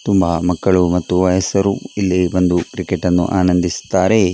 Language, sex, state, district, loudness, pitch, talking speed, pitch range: Kannada, male, Karnataka, Dakshina Kannada, -16 LUFS, 90 Hz, 110 wpm, 90-95 Hz